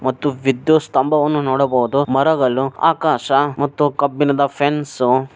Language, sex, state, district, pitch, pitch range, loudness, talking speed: Kannada, male, Karnataka, Bellary, 140 Hz, 130-150 Hz, -17 LUFS, 100 wpm